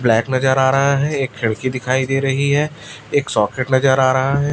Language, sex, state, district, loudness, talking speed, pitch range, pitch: Hindi, male, Chhattisgarh, Raipur, -17 LUFS, 225 wpm, 130-140 Hz, 130 Hz